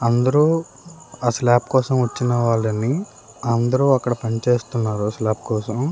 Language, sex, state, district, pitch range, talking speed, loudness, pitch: Telugu, male, Andhra Pradesh, Srikakulam, 115-135 Hz, 120 wpm, -20 LUFS, 120 Hz